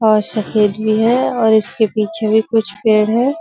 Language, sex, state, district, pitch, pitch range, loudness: Hindi, male, Uttar Pradesh, Budaun, 220 Hz, 215-225 Hz, -15 LUFS